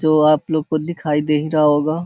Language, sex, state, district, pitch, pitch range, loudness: Hindi, male, Bihar, Jahanabad, 155 Hz, 150-155 Hz, -17 LUFS